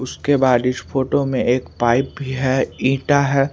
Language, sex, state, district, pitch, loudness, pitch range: Hindi, male, Bihar, Kaimur, 130 Hz, -18 LUFS, 130-140 Hz